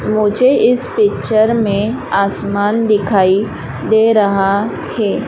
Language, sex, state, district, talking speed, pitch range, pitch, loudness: Hindi, female, Madhya Pradesh, Dhar, 100 wpm, 200-225 Hz, 210 Hz, -14 LUFS